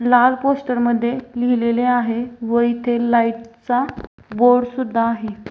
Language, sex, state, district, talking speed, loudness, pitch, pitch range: Marathi, female, Maharashtra, Dhule, 130 wpm, -18 LUFS, 240 Hz, 235-245 Hz